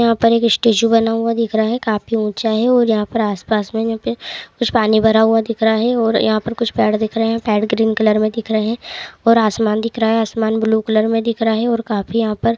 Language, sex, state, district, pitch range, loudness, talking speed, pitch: Hindi, male, West Bengal, Kolkata, 220-230 Hz, -16 LUFS, 265 wpm, 225 Hz